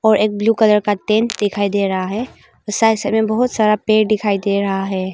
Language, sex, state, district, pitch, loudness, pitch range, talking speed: Hindi, female, Arunachal Pradesh, Longding, 210 Hz, -16 LUFS, 200-220 Hz, 235 wpm